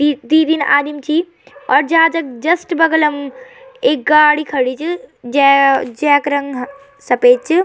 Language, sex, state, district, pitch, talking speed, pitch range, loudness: Garhwali, female, Uttarakhand, Tehri Garhwal, 295 Hz, 150 wpm, 275-325 Hz, -14 LUFS